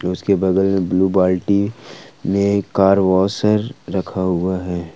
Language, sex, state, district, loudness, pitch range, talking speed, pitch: Hindi, male, Jharkhand, Ranchi, -17 LUFS, 90-100 Hz, 135 wpm, 95 Hz